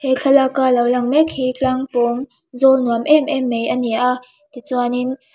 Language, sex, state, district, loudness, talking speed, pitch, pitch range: Mizo, female, Mizoram, Aizawl, -17 LUFS, 190 wpm, 255 Hz, 245-270 Hz